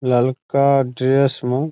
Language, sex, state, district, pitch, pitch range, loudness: Maithili, male, Bihar, Saharsa, 130 Hz, 125-140 Hz, -18 LUFS